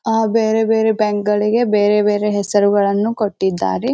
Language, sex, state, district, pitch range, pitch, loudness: Kannada, female, Karnataka, Bijapur, 205-220 Hz, 210 Hz, -16 LUFS